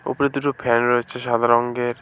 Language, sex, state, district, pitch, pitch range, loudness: Bengali, male, West Bengal, Alipurduar, 120 Hz, 120-140 Hz, -20 LUFS